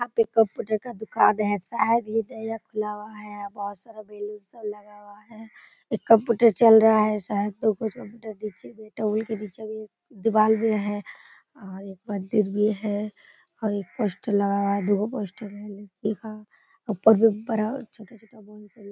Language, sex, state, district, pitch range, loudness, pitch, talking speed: Hindi, female, Bihar, Sitamarhi, 205-220 Hz, -24 LUFS, 215 Hz, 160 wpm